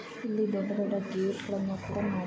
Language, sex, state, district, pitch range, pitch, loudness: Kannada, female, Karnataka, Dharwad, 195-210 Hz, 200 Hz, -32 LUFS